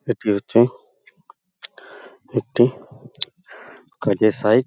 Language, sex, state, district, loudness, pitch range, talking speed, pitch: Bengali, male, West Bengal, Purulia, -20 LUFS, 105-125 Hz, 75 wpm, 110 Hz